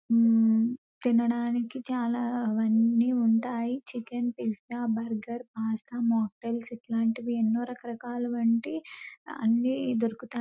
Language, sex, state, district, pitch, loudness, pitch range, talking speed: Telugu, female, Telangana, Nalgonda, 235 Hz, -28 LUFS, 230-240 Hz, 100 wpm